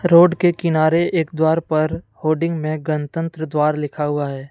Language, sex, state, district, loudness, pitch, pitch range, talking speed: Hindi, male, Jharkhand, Deoghar, -19 LUFS, 160 Hz, 150-165 Hz, 175 wpm